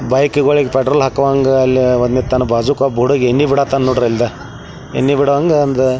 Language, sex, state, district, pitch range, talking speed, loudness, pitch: Kannada, male, Karnataka, Belgaum, 130-140 Hz, 150 wpm, -13 LUFS, 135 Hz